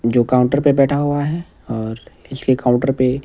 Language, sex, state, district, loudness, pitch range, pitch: Hindi, male, Himachal Pradesh, Shimla, -17 LUFS, 120-140 Hz, 130 Hz